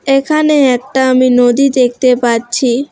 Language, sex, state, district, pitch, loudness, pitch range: Bengali, female, West Bengal, Alipurduar, 255 Hz, -11 LUFS, 245-275 Hz